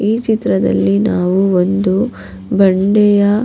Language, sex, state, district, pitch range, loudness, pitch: Kannada, female, Karnataka, Raichur, 180-205 Hz, -13 LUFS, 195 Hz